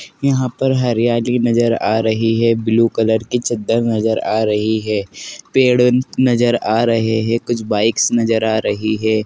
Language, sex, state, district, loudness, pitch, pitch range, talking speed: Hindi, male, Madhya Pradesh, Dhar, -16 LUFS, 115 Hz, 110-120 Hz, 170 wpm